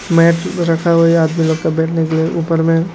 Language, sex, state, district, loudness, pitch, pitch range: Hindi, male, Arunachal Pradesh, Lower Dibang Valley, -14 LUFS, 165 Hz, 160-170 Hz